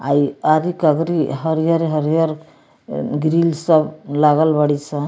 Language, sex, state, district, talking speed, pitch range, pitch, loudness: Bhojpuri, female, Bihar, Muzaffarpur, 130 wpm, 150-165 Hz, 155 Hz, -17 LUFS